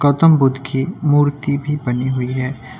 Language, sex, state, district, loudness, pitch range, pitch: Hindi, male, Uttar Pradesh, Lucknow, -17 LUFS, 130-145 Hz, 135 Hz